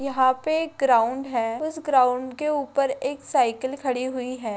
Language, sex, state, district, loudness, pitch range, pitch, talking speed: Hindi, female, Rajasthan, Nagaur, -24 LUFS, 255-285 Hz, 260 Hz, 185 wpm